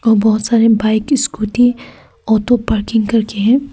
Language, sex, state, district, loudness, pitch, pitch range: Hindi, female, Arunachal Pradesh, Papum Pare, -14 LUFS, 220 Hz, 215-240 Hz